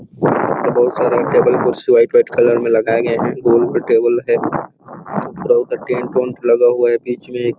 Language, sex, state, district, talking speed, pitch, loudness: Hindi, male, Chhattisgarh, Sarguja, 235 wpm, 125 Hz, -15 LUFS